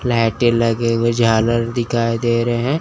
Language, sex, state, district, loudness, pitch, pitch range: Hindi, male, Chandigarh, Chandigarh, -17 LUFS, 115 Hz, 115-120 Hz